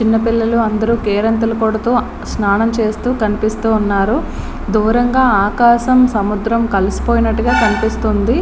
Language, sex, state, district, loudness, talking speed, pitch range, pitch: Telugu, female, Andhra Pradesh, Srikakulam, -14 LUFS, 95 wpm, 215-230 Hz, 225 Hz